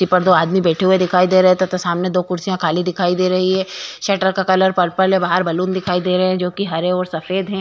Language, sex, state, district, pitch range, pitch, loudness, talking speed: Hindi, female, Uttar Pradesh, Jyotiba Phule Nagar, 180-185 Hz, 185 Hz, -17 LUFS, 285 wpm